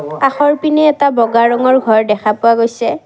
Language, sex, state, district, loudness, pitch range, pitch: Assamese, female, Assam, Kamrup Metropolitan, -12 LUFS, 225-280 Hz, 235 Hz